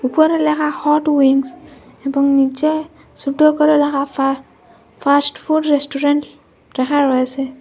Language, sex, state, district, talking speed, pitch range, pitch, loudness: Bengali, female, Assam, Hailakandi, 120 wpm, 275-305 Hz, 285 Hz, -16 LUFS